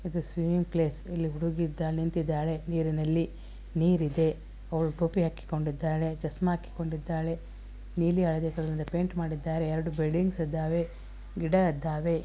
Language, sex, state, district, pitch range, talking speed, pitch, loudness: Kannada, female, Karnataka, Belgaum, 160-170 Hz, 120 wpm, 165 Hz, -30 LUFS